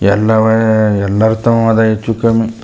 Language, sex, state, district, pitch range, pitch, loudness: Kannada, male, Karnataka, Chamarajanagar, 110-115 Hz, 110 Hz, -12 LUFS